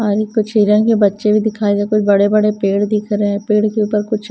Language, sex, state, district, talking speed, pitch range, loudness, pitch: Hindi, female, Punjab, Kapurthala, 280 wpm, 205-215 Hz, -15 LUFS, 210 Hz